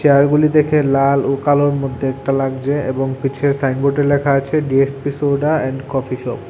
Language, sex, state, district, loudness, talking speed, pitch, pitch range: Bengali, male, Tripura, West Tripura, -16 LUFS, 175 wpm, 140 Hz, 135-145 Hz